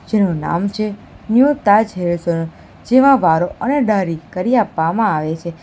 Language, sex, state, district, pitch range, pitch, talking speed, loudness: Gujarati, female, Gujarat, Valsad, 170-225 Hz, 200 Hz, 160 wpm, -16 LUFS